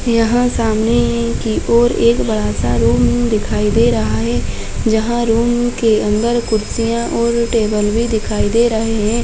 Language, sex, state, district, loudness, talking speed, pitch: Chhattisgarhi, female, Chhattisgarh, Sarguja, -15 LUFS, 155 wpm, 220 Hz